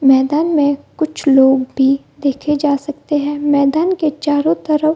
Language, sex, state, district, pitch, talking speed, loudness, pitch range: Hindi, female, Bihar, Gaya, 290 Hz, 170 wpm, -15 LUFS, 275-305 Hz